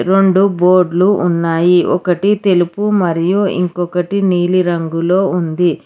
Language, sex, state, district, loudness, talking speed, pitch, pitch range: Telugu, female, Telangana, Hyderabad, -13 LUFS, 100 wpm, 180 Hz, 175-195 Hz